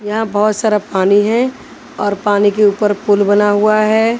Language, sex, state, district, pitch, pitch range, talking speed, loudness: Hindi, female, Haryana, Charkhi Dadri, 210 Hz, 205-215 Hz, 185 wpm, -13 LUFS